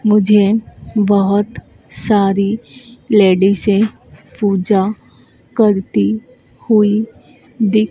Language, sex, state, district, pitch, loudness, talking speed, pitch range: Hindi, female, Madhya Pradesh, Dhar, 205 Hz, -14 LUFS, 60 wpm, 190-215 Hz